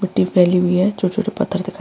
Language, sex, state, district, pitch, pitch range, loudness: Hindi, female, Bihar, Vaishali, 190 Hz, 180-195 Hz, -17 LUFS